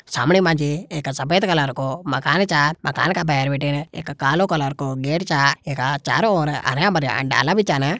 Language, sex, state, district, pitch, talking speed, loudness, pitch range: Hindi, male, Uttarakhand, Tehri Garhwal, 145 Hz, 195 wpm, -19 LUFS, 140-170 Hz